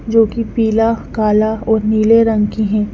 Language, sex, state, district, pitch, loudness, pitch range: Hindi, female, Punjab, Fazilka, 220 Hz, -14 LUFS, 215-225 Hz